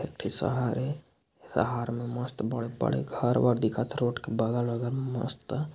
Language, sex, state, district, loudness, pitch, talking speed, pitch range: Chhattisgarhi, male, Chhattisgarh, Bilaspur, -30 LUFS, 120 Hz, 190 wpm, 115-130 Hz